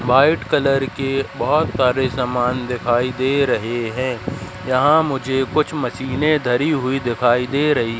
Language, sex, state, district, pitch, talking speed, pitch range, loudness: Hindi, male, Madhya Pradesh, Katni, 130 Hz, 140 wpm, 125-135 Hz, -19 LUFS